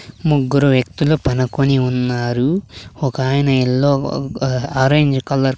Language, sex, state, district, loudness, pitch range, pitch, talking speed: Telugu, male, Andhra Pradesh, Sri Satya Sai, -17 LUFS, 125-140 Hz, 135 Hz, 95 wpm